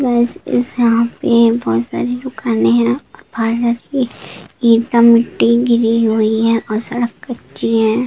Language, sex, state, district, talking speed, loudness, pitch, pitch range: Hindi, female, Bihar, Gopalganj, 105 wpm, -15 LUFS, 230 Hz, 225-240 Hz